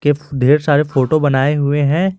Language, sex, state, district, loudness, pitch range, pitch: Hindi, male, Jharkhand, Garhwa, -15 LUFS, 140-150 Hz, 145 Hz